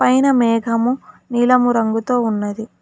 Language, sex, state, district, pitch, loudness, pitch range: Telugu, female, Telangana, Hyderabad, 235 Hz, -17 LUFS, 220-250 Hz